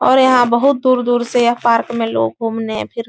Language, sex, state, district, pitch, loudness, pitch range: Hindi, female, Uttar Pradesh, Etah, 235 Hz, -15 LUFS, 230-250 Hz